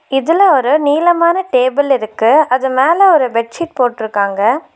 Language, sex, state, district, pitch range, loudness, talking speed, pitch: Tamil, female, Tamil Nadu, Nilgiris, 245-335 Hz, -12 LUFS, 140 wpm, 270 Hz